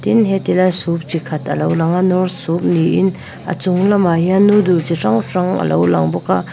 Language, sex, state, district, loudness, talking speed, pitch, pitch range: Mizo, female, Mizoram, Aizawl, -15 LUFS, 240 wpm, 175 Hz, 165-185 Hz